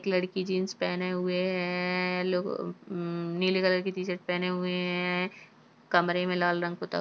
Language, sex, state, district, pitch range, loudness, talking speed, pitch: Hindi, female, Uttarakhand, Tehri Garhwal, 180-185 Hz, -29 LUFS, 180 wpm, 180 Hz